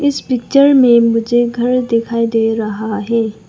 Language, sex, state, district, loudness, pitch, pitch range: Hindi, female, Arunachal Pradesh, Lower Dibang Valley, -13 LUFS, 230 Hz, 225-250 Hz